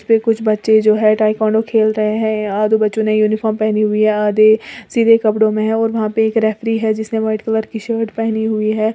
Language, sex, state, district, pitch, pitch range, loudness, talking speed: Hindi, female, Uttar Pradesh, Lalitpur, 220 Hz, 215-220 Hz, -15 LUFS, 235 wpm